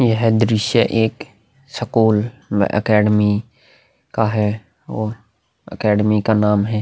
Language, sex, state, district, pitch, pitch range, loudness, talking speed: Hindi, male, Bihar, Vaishali, 110 Hz, 105-115 Hz, -18 LUFS, 115 wpm